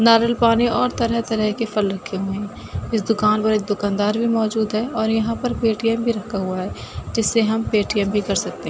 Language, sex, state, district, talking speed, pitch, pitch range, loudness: Hindi, female, Uttar Pradesh, Budaun, 220 wpm, 220 Hz, 205-230 Hz, -20 LUFS